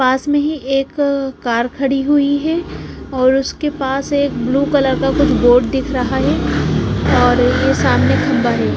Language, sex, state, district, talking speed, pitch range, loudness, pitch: Hindi, female, Punjab, Pathankot, 165 wpm, 265-285 Hz, -15 LUFS, 270 Hz